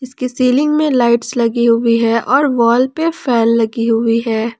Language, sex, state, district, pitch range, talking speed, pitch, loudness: Hindi, female, Jharkhand, Palamu, 230-260 Hz, 180 wpm, 235 Hz, -14 LUFS